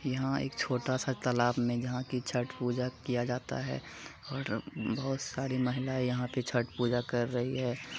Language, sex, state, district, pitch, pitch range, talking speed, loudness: Hindi, male, Bihar, Jamui, 125 Hz, 120-130 Hz, 180 wpm, -33 LUFS